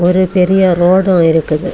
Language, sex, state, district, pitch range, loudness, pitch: Tamil, female, Tamil Nadu, Kanyakumari, 175-185 Hz, -11 LUFS, 180 Hz